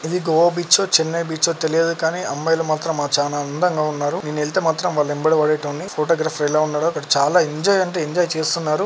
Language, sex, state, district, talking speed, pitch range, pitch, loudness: Telugu, male, Telangana, Karimnagar, 190 wpm, 150-170 Hz, 160 Hz, -19 LUFS